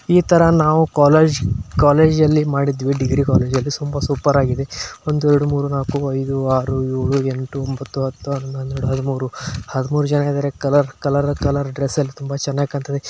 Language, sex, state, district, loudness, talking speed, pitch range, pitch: Kannada, male, Karnataka, Belgaum, -18 LUFS, 150 wpm, 135-145 Hz, 140 Hz